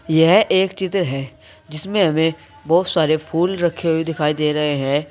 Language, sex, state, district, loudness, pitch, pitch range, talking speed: Hindi, male, Uttar Pradesh, Saharanpur, -18 LUFS, 160 Hz, 150-175 Hz, 175 wpm